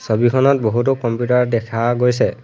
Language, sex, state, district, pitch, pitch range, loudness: Assamese, male, Assam, Hailakandi, 120 Hz, 115-125 Hz, -17 LUFS